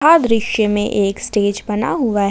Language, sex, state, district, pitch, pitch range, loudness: Hindi, female, Jharkhand, Ranchi, 210 Hz, 205-230 Hz, -17 LUFS